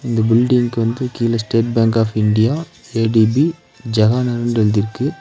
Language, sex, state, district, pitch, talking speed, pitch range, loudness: Tamil, male, Tamil Nadu, Nilgiris, 115 Hz, 125 wpm, 110-125 Hz, -16 LUFS